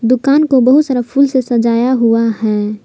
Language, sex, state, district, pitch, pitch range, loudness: Hindi, female, Jharkhand, Palamu, 245 Hz, 230-265 Hz, -12 LUFS